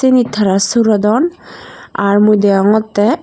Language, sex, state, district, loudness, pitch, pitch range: Chakma, female, Tripura, Dhalai, -12 LUFS, 215 Hz, 200-235 Hz